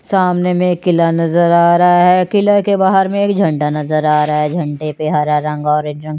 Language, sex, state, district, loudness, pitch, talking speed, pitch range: Hindi, female, Chandigarh, Chandigarh, -13 LUFS, 170 Hz, 245 wpm, 150-180 Hz